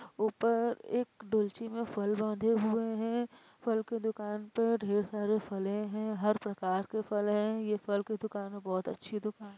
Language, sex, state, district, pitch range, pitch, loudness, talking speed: Hindi, female, Uttar Pradesh, Varanasi, 205-225 Hz, 215 Hz, -34 LUFS, 180 wpm